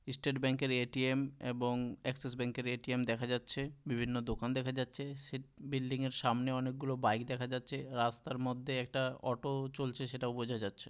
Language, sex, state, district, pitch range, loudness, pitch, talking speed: Bengali, male, West Bengal, Malda, 125-135 Hz, -37 LUFS, 130 Hz, 190 wpm